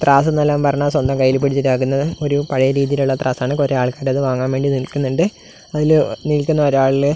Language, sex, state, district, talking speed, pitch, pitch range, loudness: Malayalam, male, Kerala, Kasaragod, 175 wpm, 140 Hz, 135-145 Hz, -17 LUFS